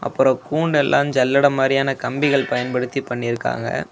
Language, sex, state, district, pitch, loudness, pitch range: Tamil, male, Tamil Nadu, Namakkal, 135 Hz, -19 LUFS, 125-140 Hz